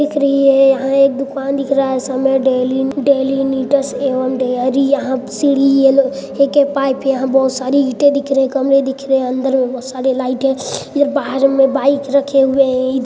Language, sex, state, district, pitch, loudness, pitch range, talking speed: Hindi, male, Chhattisgarh, Sarguja, 270 Hz, -14 LUFS, 265-275 Hz, 180 wpm